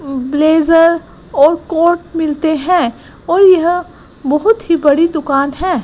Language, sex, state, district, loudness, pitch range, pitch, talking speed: Hindi, female, Gujarat, Gandhinagar, -12 LUFS, 295-345 Hz, 325 Hz, 125 wpm